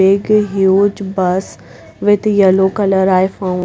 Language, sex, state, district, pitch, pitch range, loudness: English, female, Punjab, Pathankot, 195 Hz, 190-205 Hz, -13 LUFS